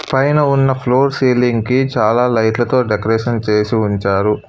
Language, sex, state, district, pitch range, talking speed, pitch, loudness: Telugu, male, Telangana, Hyderabad, 110-130 Hz, 135 wpm, 120 Hz, -15 LUFS